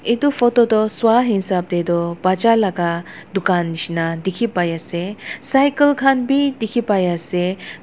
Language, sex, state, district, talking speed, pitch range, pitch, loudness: Nagamese, female, Nagaland, Dimapur, 115 wpm, 175-240 Hz, 195 Hz, -18 LUFS